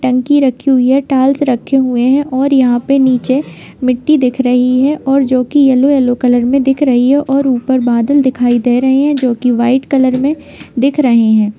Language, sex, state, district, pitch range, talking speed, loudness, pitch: Hindi, female, Bihar, Jamui, 250-275 Hz, 210 wpm, -11 LUFS, 260 Hz